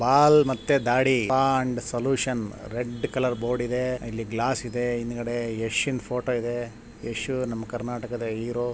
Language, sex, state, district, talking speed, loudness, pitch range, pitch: Kannada, male, Karnataka, Shimoga, 145 wpm, -26 LUFS, 120-130 Hz, 120 Hz